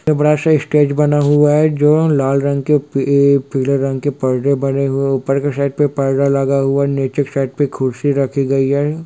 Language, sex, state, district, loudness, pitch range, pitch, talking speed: Hindi, male, Bihar, Sitamarhi, -15 LUFS, 135-145 Hz, 140 Hz, 225 wpm